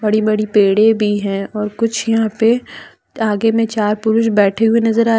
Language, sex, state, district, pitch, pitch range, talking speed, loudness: Hindi, female, Jharkhand, Deoghar, 220 Hz, 210-225 Hz, 195 wpm, -15 LUFS